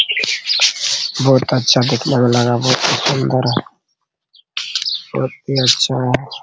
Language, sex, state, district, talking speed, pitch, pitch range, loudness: Hindi, male, Bihar, Araria, 130 wpm, 130 Hz, 125-130 Hz, -15 LUFS